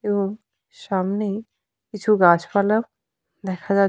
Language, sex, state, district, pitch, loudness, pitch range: Bengali, female, Jharkhand, Sahebganj, 200 Hz, -21 LUFS, 195-210 Hz